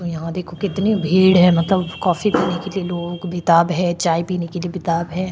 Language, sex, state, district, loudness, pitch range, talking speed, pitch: Hindi, female, Chhattisgarh, Korba, -18 LUFS, 170-185 Hz, 215 wpm, 175 Hz